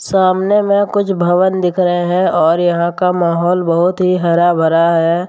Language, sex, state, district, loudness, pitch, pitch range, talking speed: Hindi, male, Jharkhand, Deoghar, -13 LUFS, 175 Hz, 170-185 Hz, 180 wpm